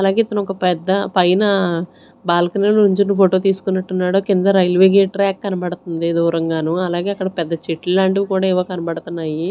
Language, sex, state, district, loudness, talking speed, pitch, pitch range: Telugu, female, Andhra Pradesh, Sri Satya Sai, -17 LUFS, 145 wpm, 185 Hz, 175-195 Hz